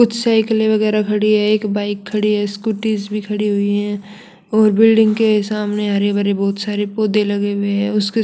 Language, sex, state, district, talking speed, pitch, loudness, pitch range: Hindi, female, Chandigarh, Chandigarh, 190 wpm, 210 Hz, -16 LUFS, 205-215 Hz